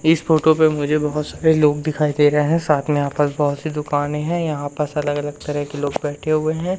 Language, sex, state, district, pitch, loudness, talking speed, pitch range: Hindi, male, Madhya Pradesh, Umaria, 150 Hz, -19 LUFS, 265 wpm, 145-155 Hz